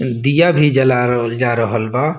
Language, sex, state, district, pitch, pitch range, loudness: Bhojpuri, male, Bihar, Muzaffarpur, 125 Hz, 120-145 Hz, -15 LUFS